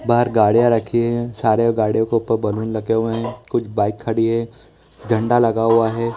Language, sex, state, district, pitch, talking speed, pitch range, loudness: Hindi, male, Bihar, East Champaran, 115 Hz, 195 wpm, 110-115 Hz, -18 LUFS